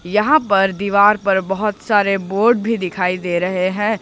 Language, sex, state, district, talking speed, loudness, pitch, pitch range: Hindi, male, Jharkhand, Ranchi, 180 wpm, -16 LUFS, 200 Hz, 190-210 Hz